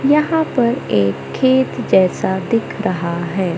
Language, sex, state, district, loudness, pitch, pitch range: Hindi, male, Madhya Pradesh, Katni, -17 LUFS, 190 Hz, 170-260 Hz